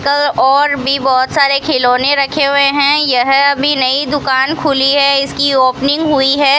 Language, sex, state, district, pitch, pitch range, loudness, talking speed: Hindi, female, Rajasthan, Bikaner, 280 Hz, 270-285 Hz, -11 LUFS, 175 wpm